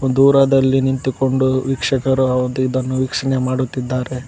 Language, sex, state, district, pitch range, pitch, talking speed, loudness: Kannada, male, Karnataka, Koppal, 130-135 Hz, 130 Hz, 85 wpm, -17 LUFS